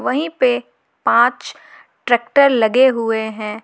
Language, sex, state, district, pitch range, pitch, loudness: Hindi, female, Jharkhand, Garhwa, 220-260 Hz, 245 Hz, -16 LUFS